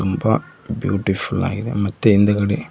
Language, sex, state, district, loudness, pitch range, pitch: Kannada, male, Karnataka, Koppal, -19 LUFS, 100-110 Hz, 100 Hz